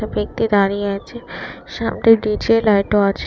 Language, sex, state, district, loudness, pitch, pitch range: Bengali, female, Tripura, West Tripura, -17 LUFS, 210 Hz, 200-225 Hz